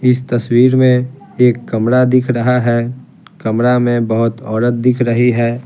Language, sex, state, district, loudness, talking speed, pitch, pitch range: Hindi, male, Bihar, Patna, -14 LUFS, 160 wpm, 125 Hz, 120-125 Hz